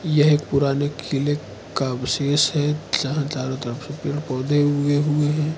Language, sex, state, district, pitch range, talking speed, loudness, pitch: Hindi, male, Arunachal Pradesh, Lower Dibang Valley, 135-150 Hz, 160 wpm, -22 LUFS, 145 Hz